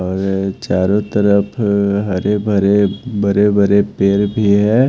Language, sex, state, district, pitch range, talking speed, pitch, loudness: Hindi, male, Haryana, Jhajjar, 100-105 Hz, 110 wpm, 100 Hz, -15 LUFS